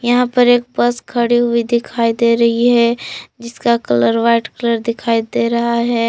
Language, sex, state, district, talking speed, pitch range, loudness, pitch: Hindi, female, Jharkhand, Palamu, 175 wpm, 230-240 Hz, -15 LUFS, 235 Hz